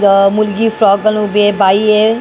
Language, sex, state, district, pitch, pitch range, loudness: Marathi, female, Maharashtra, Mumbai Suburban, 210 Hz, 200-215 Hz, -11 LUFS